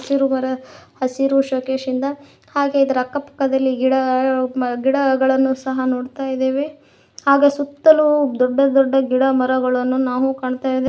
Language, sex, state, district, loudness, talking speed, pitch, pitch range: Kannada, female, Karnataka, Koppal, -18 LUFS, 115 wpm, 265 Hz, 260-275 Hz